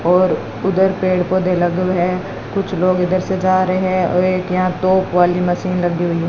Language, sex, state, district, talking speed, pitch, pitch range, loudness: Hindi, female, Rajasthan, Bikaner, 220 wpm, 185 Hz, 180-185 Hz, -17 LUFS